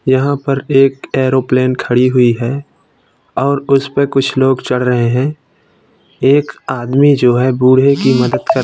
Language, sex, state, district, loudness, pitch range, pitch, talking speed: Hindi, male, Uttar Pradesh, Varanasi, -13 LUFS, 125-140 Hz, 130 Hz, 160 wpm